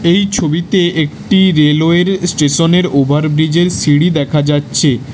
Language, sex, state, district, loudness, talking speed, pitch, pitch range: Bengali, male, West Bengal, Alipurduar, -12 LUFS, 115 wpm, 160 Hz, 145-175 Hz